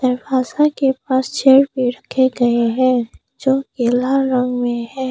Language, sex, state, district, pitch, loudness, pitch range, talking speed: Hindi, female, Arunachal Pradesh, Papum Pare, 260 Hz, -17 LUFS, 245-265 Hz, 165 wpm